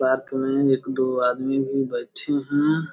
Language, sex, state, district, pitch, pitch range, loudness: Hindi, male, Bihar, Jamui, 135 Hz, 130-140 Hz, -23 LUFS